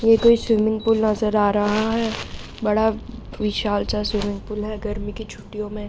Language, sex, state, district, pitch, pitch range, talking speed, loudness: Hindi, female, Bihar, Araria, 215 Hz, 210-220 Hz, 185 wpm, -21 LUFS